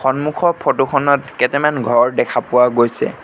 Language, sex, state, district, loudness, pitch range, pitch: Assamese, male, Assam, Sonitpur, -15 LUFS, 125-145 Hz, 135 Hz